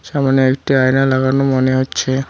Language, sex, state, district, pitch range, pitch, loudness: Bengali, male, West Bengal, Cooch Behar, 130-135 Hz, 130 Hz, -15 LUFS